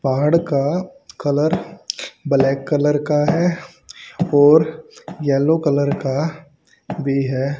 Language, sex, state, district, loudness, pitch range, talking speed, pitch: Hindi, male, Haryana, Charkhi Dadri, -18 LUFS, 140-160 Hz, 105 wpm, 145 Hz